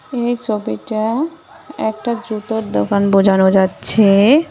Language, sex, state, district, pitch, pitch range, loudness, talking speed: Bengali, male, West Bengal, Cooch Behar, 215 Hz, 195-240 Hz, -16 LUFS, 95 wpm